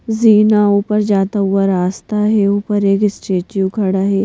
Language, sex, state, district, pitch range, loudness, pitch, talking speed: Hindi, female, Madhya Pradesh, Bhopal, 195-210 Hz, -14 LUFS, 200 Hz, 155 wpm